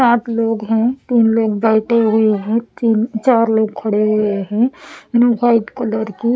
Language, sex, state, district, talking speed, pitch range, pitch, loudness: Hindi, female, Punjab, Pathankot, 160 wpm, 220-235 Hz, 225 Hz, -16 LUFS